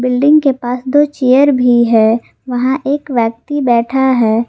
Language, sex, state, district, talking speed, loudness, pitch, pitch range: Hindi, female, Jharkhand, Garhwa, 160 wpm, -12 LUFS, 255 Hz, 235-275 Hz